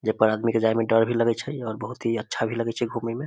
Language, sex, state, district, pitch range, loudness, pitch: Maithili, male, Bihar, Samastipur, 110-115 Hz, -24 LUFS, 115 Hz